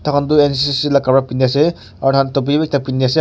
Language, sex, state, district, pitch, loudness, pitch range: Nagamese, male, Nagaland, Kohima, 140 Hz, -15 LUFS, 135-145 Hz